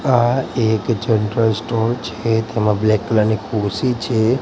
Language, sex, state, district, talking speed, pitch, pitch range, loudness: Gujarati, male, Gujarat, Gandhinagar, 150 wpm, 110 Hz, 110-120 Hz, -18 LUFS